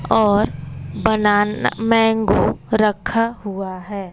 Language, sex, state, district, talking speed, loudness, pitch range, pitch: Hindi, female, Bihar, West Champaran, 85 wpm, -18 LUFS, 195-220 Hz, 210 Hz